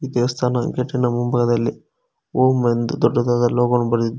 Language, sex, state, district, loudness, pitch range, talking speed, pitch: Kannada, male, Karnataka, Koppal, -19 LUFS, 120-125 Hz, 130 wpm, 120 Hz